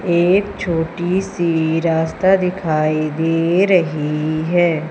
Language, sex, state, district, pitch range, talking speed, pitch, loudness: Hindi, male, Madhya Pradesh, Umaria, 160-180 Hz, 100 wpm, 165 Hz, -17 LUFS